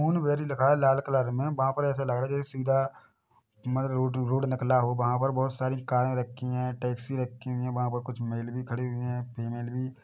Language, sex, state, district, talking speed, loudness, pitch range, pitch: Hindi, male, Chhattisgarh, Bilaspur, 250 wpm, -29 LUFS, 125-135 Hz, 130 Hz